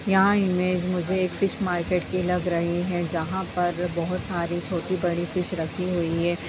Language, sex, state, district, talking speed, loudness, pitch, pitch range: Hindi, female, Bihar, Jahanabad, 185 wpm, -25 LUFS, 180 Hz, 175-185 Hz